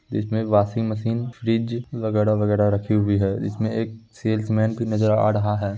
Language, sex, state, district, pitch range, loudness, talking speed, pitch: Hindi, male, Bihar, Muzaffarpur, 105-115 Hz, -22 LUFS, 165 wpm, 110 Hz